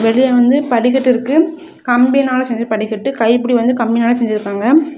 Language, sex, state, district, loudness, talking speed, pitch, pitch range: Tamil, female, Tamil Nadu, Kanyakumari, -14 LUFS, 130 wpm, 245 Hz, 235-265 Hz